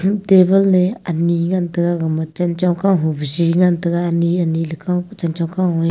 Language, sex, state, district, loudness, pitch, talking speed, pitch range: Wancho, female, Arunachal Pradesh, Longding, -17 LUFS, 175 Hz, 195 wpm, 170-185 Hz